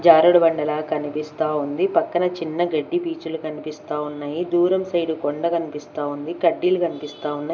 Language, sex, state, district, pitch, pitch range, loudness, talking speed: Telugu, female, Andhra Pradesh, Manyam, 160 Hz, 150-175 Hz, -22 LUFS, 135 wpm